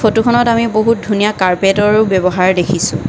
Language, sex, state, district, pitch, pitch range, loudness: Assamese, female, Assam, Kamrup Metropolitan, 210 Hz, 185-220 Hz, -13 LUFS